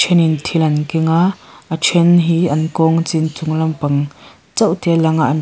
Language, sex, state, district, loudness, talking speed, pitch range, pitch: Mizo, female, Mizoram, Aizawl, -15 LUFS, 230 wpm, 155-170 Hz, 160 Hz